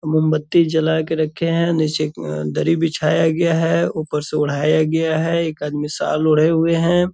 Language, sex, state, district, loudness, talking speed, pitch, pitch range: Hindi, male, Bihar, Purnia, -18 LUFS, 185 wpm, 160 Hz, 155-165 Hz